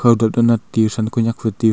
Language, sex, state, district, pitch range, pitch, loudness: Wancho, male, Arunachal Pradesh, Longding, 110-115 Hz, 115 Hz, -17 LUFS